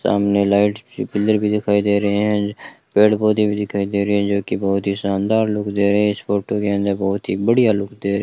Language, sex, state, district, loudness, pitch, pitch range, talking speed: Hindi, male, Rajasthan, Bikaner, -18 LUFS, 100 Hz, 100-105 Hz, 255 wpm